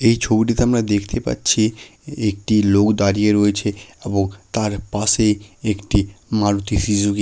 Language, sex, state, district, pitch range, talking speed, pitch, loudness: Bengali, male, West Bengal, Malda, 100-110 Hz, 135 wpm, 105 Hz, -18 LUFS